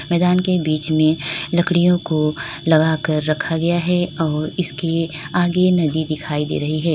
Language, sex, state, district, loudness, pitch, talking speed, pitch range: Hindi, female, Uttar Pradesh, Lalitpur, -18 LUFS, 160 Hz, 165 wpm, 155-175 Hz